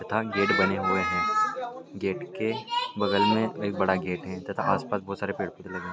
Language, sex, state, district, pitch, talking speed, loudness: Hindi, male, Maharashtra, Pune, 100 Hz, 210 wpm, -27 LUFS